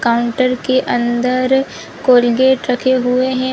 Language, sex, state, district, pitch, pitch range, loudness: Hindi, female, Chhattisgarh, Bastar, 255 Hz, 245-260 Hz, -14 LUFS